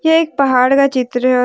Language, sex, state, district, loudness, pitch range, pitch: Hindi, female, Jharkhand, Deoghar, -13 LUFS, 250-280 Hz, 260 Hz